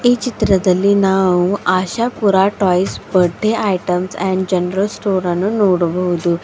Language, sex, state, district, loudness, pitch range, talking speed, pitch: Kannada, female, Karnataka, Bidar, -16 LUFS, 180-200 Hz, 110 wpm, 190 Hz